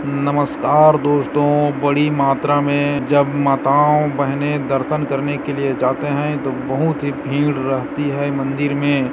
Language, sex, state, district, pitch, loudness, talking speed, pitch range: Chhattisgarhi, male, Chhattisgarh, Korba, 145 Hz, -17 LUFS, 145 wpm, 140-145 Hz